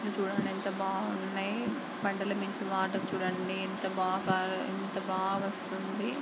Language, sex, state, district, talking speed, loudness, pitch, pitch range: Telugu, female, Andhra Pradesh, Guntur, 135 wpm, -33 LUFS, 195 Hz, 190-200 Hz